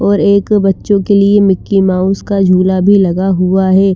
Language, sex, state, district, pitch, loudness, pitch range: Hindi, female, Chandigarh, Chandigarh, 195 Hz, -10 LUFS, 190-200 Hz